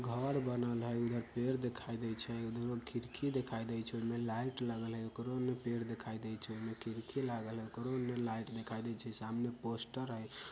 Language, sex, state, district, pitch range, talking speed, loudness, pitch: Bajjika, male, Bihar, Vaishali, 115-120 Hz, 205 wpm, -41 LUFS, 115 Hz